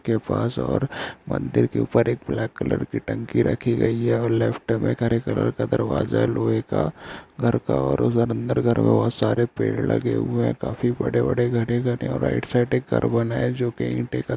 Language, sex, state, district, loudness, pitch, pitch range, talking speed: Hindi, male, Jharkhand, Sahebganj, -23 LUFS, 115 Hz, 105-120 Hz, 200 wpm